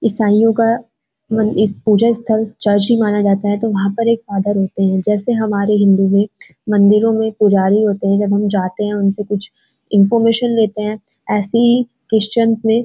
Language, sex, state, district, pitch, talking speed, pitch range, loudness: Hindi, female, Uttarakhand, Uttarkashi, 210 Hz, 180 wpm, 205-225 Hz, -15 LUFS